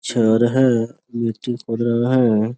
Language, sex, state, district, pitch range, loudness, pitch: Hindi, male, Jharkhand, Sahebganj, 115-125 Hz, -19 LUFS, 120 Hz